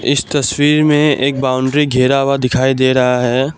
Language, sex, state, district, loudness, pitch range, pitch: Hindi, male, Assam, Kamrup Metropolitan, -13 LUFS, 130-145 Hz, 135 Hz